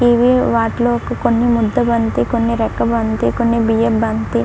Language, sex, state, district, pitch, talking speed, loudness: Telugu, female, Andhra Pradesh, Krishna, 230 Hz, 160 wpm, -15 LUFS